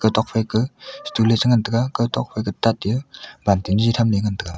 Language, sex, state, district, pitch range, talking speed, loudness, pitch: Wancho, male, Arunachal Pradesh, Longding, 105-120 Hz, 225 wpm, -20 LUFS, 110 Hz